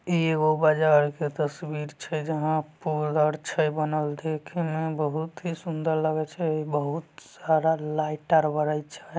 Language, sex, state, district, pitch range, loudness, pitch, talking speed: Magahi, male, Bihar, Samastipur, 150-160 Hz, -26 LUFS, 155 Hz, 145 wpm